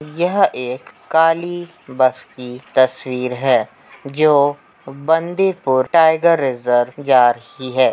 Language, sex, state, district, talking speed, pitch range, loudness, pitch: Hindi, male, Uttar Pradesh, Hamirpur, 105 wpm, 125-165 Hz, -16 LUFS, 135 Hz